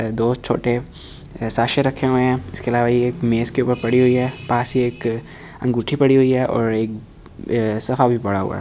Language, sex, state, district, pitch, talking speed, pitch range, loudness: Hindi, male, Delhi, New Delhi, 120 Hz, 180 wpm, 115-130 Hz, -19 LUFS